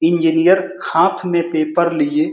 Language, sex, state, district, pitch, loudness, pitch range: Hindi, male, Bihar, Saran, 175 Hz, -16 LUFS, 165-190 Hz